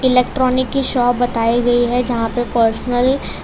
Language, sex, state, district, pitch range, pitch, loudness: Hindi, female, Gujarat, Valsad, 240-255 Hz, 245 Hz, -16 LUFS